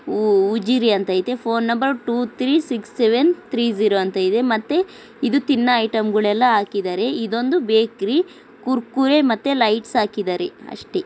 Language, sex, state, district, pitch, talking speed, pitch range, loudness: Kannada, female, Karnataka, Dakshina Kannada, 235 Hz, 140 wpm, 215-265 Hz, -19 LUFS